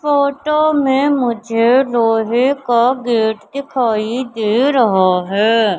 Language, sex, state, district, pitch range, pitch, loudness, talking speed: Hindi, male, Madhya Pradesh, Katni, 225-275 Hz, 240 Hz, -15 LUFS, 105 wpm